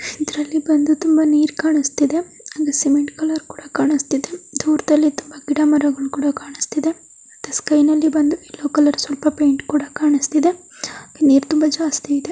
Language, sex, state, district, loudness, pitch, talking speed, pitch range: Kannada, female, Karnataka, Chamarajanagar, -18 LUFS, 300 Hz, 145 wpm, 290-310 Hz